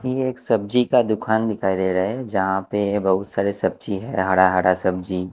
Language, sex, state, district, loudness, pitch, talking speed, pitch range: Hindi, male, Maharashtra, Mumbai Suburban, -21 LUFS, 100 Hz, 205 wpm, 95-110 Hz